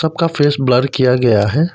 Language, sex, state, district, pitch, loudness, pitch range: Hindi, male, Arunachal Pradesh, Papum Pare, 135 Hz, -14 LUFS, 125-160 Hz